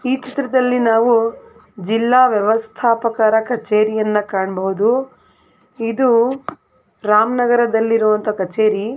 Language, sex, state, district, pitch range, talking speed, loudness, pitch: Kannada, female, Karnataka, Belgaum, 215-245 Hz, 75 wpm, -16 LUFS, 225 Hz